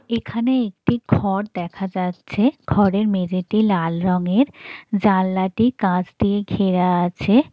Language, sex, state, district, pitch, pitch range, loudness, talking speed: Bengali, female, West Bengal, Jalpaiguri, 195 Hz, 180-225 Hz, -20 LUFS, 110 wpm